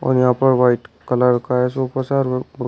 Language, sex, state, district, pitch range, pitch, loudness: Hindi, male, Uttar Pradesh, Shamli, 125-130 Hz, 125 Hz, -18 LUFS